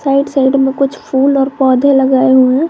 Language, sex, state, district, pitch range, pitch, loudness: Hindi, female, Jharkhand, Garhwa, 265-275 Hz, 270 Hz, -11 LUFS